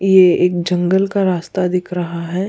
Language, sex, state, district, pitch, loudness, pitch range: Hindi, female, Goa, North and South Goa, 180 Hz, -16 LUFS, 175-190 Hz